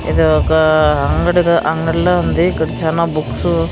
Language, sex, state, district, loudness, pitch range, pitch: Telugu, female, Andhra Pradesh, Sri Satya Sai, -14 LUFS, 150-170 Hz, 160 Hz